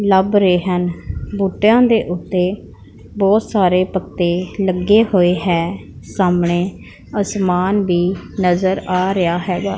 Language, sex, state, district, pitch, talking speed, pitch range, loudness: Punjabi, female, Punjab, Pathankot, 185 Hz, 115 wpm, 180-200 Hz, -16 LUFS